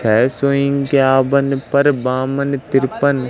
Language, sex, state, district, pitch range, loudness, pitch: Hindi, male, Madhya Pradesh, Katni, 130-140 Hz, -16 LUFS, 135 Hz